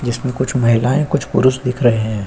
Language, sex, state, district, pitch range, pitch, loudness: Hindi, male, Uttar Pradesh, Jyotiba Phule Nagar, 120-130 Hz, 125 Hz, -16 LUFS